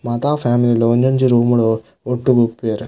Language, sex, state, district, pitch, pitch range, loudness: Tulu, male, Karnataka, Dakshina Kannada, 120 Hz, 115-125 Hz, -16 LUFS